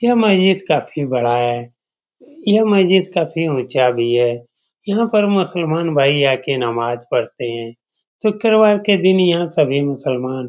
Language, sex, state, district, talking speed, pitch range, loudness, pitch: Hindi, male, Bihar, Saran, 150 wpm, 125-200 Hz, -16 LUFS, 155 Hz